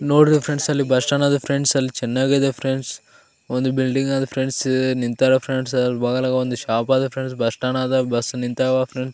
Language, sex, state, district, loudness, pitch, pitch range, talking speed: Kannada, male, Karnataka, Raichur, -20 LUFS, 130 Hz, 125-135 Hz, 185 wpm